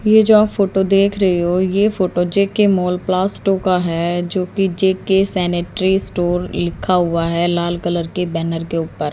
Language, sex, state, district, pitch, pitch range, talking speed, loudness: Hindi, female, Haryana, Jhajjar, 185 Hz, 175-195 Hz, 175 wpm, -16 LUFS